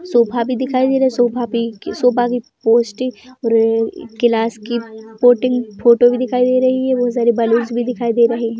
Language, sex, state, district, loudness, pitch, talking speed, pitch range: Hindi, female, Chhattisgarh, Bilaspur, -16 LUFS, 240 Hz, 200 wpm, 230-250 Hz